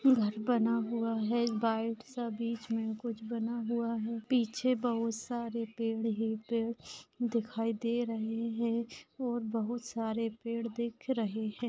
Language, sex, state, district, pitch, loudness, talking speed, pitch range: Hindi, female, Maharashtra, Aurangabad, 230 Hz, -34 LUFS, 150 wpm, 225-235 Hz